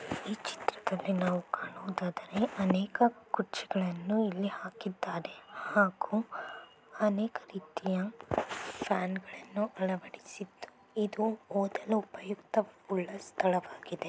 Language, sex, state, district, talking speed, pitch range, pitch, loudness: Kannada, female, Karnataka, Bellary, 70 wpm, 185-215 Hz, 200 Hz, -34 LUFS